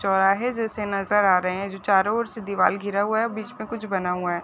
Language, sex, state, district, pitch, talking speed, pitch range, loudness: Hindi, female, Chhattisgarh, Bilaspur, 200 Hz, 270 wpm, 190-220 Hz, -23 LUFS